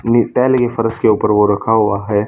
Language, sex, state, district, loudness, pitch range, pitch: Hindi, male, Haryana, Charkhi Dadri, -14 LUFS, 105-120 Hz, 110 Hz